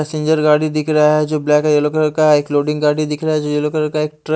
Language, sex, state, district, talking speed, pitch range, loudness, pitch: Hindi, male, Haryana, Rohtak, 315 wpm, 150-155 Hz, -15 LUFS, 150 Hz